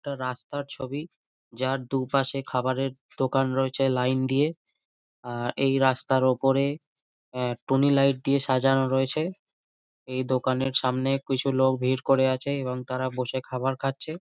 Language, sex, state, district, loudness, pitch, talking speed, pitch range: Bengali, male, West Bengal, Kolkata, -26 LUFS, 135 Hz, 140 wpm, 130-135 Hz